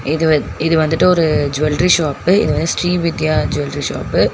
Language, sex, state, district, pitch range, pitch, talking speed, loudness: Tamil, female, Tamil Nadu, Chennai, 150-170 Hz, 155 Hz, 195 wpm, -15 LUFS